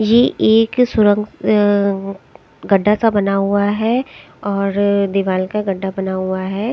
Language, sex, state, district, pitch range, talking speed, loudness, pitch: Hindi, female, Odisha, Sambalpur, 195-215 Hz, 145 wpm, -16 LUFS, 205 Hz